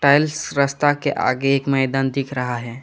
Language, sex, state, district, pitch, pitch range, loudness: Hindi, male, West Bengal, Alipurduar, 135 Hz, 130-145 Hz, -20 LUFS